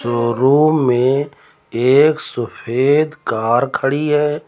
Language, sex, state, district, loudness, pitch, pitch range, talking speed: Hindi, male, Uttar Pradesh, Lucknow, -16 LUFS, 135 Hz, 120-150 Hz, 95 wpm